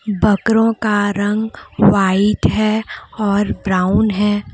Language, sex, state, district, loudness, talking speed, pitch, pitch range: Hindi, female, Jharkhand, Deoghar, -16 LUFS, 105 wpm, 210 Hz, 200-215 Hz